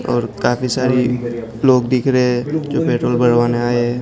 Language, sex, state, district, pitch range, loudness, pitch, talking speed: Hindi, male, Gujarat, Gandhinagar, 120-125 Hz, -16 LUFS, 125 Hz, 180 wpm